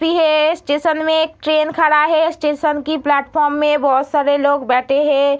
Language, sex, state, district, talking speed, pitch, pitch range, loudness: Hindi, female, Bihar, Kishanganj, 220 wpm, 300 Hz, 285-315 Hz, -15 LUFS